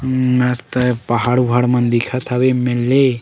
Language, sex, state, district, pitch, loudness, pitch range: Chhattisgarhi, male, Chhattisgarh, Sukma, 125 Hz, -16 LUFS, 120-125 Hz